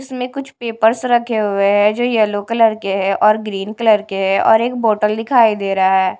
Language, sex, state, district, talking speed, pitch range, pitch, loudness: Hindi, female, Punjab, Kapurthala, 220 wpm, 200-235 Hz, 215 Hz, -15 LUFS